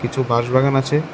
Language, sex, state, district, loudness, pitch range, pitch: Bengali, male, Tripura, West Tripura, -18 LUFS, 120-135 Hz, 130 Hz